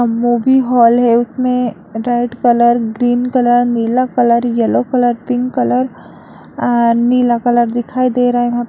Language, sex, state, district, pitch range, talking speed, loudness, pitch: Hindi, female, Bihar, Lakhisarai, 235-250 Hz, 150 wpm, -13 LUFS, 240 Hz